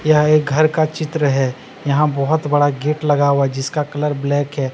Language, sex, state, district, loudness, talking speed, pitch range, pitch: Hindi, male, Jharkhand, Deoghar, -17 LUFS, 215 wpm, 140-150 Hz, 145 Hz